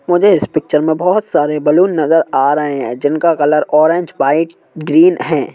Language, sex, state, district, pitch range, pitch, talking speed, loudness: Hindi, male, Madhya Pradesh, Bhopal, 150-175 Hz, 160 Hz, 185 wpm, -13 LUFS